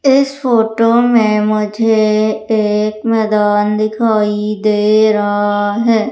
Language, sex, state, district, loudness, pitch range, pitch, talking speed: Hindi, female, Madhya Pradesh, Umaria, -13 LUFS, 210-225 Hz, 215 Hz, 100 wpm